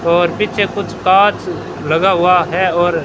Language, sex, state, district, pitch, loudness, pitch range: Hindi, male, Rajasthan, Bikaner, 180 Hz, -14 LUFS, 175-200 Hz